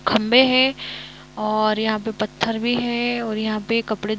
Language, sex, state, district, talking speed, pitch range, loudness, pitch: Hindi, female, Jharkhand, Jamtara, 185 wpm, 215-240 Hz, -20 LUFS, 220 Hz